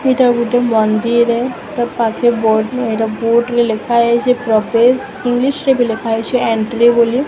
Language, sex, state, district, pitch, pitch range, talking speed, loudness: Odia, female, Odisha, Sambalpur, 235 Hz, 225-245 Hz, 155 wpm, -14 LUFS